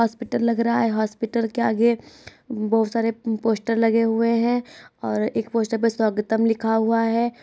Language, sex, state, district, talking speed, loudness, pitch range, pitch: Hindi, female, Uttar Pradesh, Hamirpur, 170 wpm, -22 LUFS, 225-230 Hz, 230 Hz